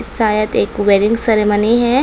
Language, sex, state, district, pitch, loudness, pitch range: Hindi, female, Tripura, West Tripura, 215 Hz, -14 LUFS, 210-230 Hz